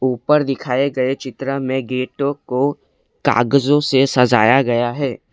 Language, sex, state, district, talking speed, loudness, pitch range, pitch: Hindi, male, Assam, Kamrup Metropolitan, 135 wpm, -17 LUFS, 125-140 Hz, 135 Hz